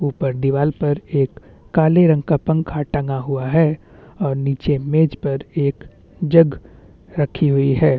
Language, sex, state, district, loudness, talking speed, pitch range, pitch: Hindi, male, Chhattisgarh, Bastar, -18 LUFS, 150 wpm, 135-160 Hz, 145 Hz